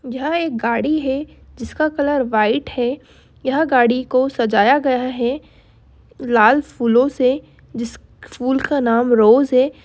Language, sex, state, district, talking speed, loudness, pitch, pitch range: Hindi, female, Bihar, Darbhanga, 140 wpm, -17 LUFS, 255 Hz, 235-280 Hz